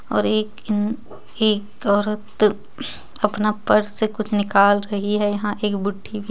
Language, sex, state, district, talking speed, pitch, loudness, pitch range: Hindi, female, Jharkhand, Ranchi, 145 wpm, 210 Hz, -21 LUFS, 205-215 Hz